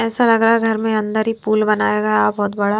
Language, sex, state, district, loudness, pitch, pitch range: Hindi, female, Himachal Pradesh, Shimla, -17 LUFS, 215 Hz, 205-225 Hz